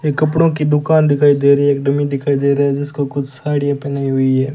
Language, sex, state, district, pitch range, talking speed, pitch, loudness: Hindi, male, Rajasthan, Bikaner, 140-150 Hz, 250 wpm, 145 Hz, -15 LUFS